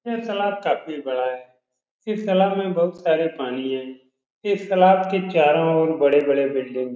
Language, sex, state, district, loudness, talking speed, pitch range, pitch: Hindi, male, Uttar Pradesh, Etah, -21 LUFS, 170 wpm, 130-190 Hz, 160 Hz